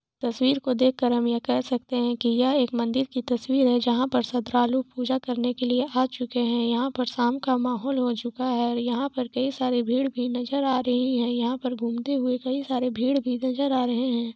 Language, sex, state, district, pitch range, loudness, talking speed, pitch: Hindi, female, Jharkhand, Jamtara, 240-260 Hz, -25 LUFS, 240 wpm, 250 Hz